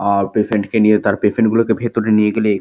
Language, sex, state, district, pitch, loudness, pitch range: Bengali, male, West Bengal, Kolkata, 105 Hz, -15 LUFS, 105-110 Hz